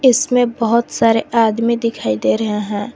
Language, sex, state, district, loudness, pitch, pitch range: Hindi, female, Jharkhand, Garhwa, -16 LUFS, 230 Hz, 210-235 Hz